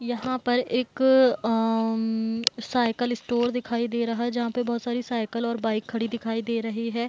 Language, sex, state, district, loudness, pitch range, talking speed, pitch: Hindi, female, Bihar, Gopalganj, -25 LUFS, 225-245 Hz, 195 wpm, 235 Hz